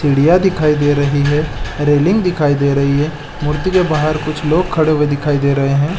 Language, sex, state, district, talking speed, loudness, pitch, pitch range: Hindi, male, Chhattisgarh, Balrampur, 200 wpm, -14 LUFS, 150 Hz, 145-155 Hz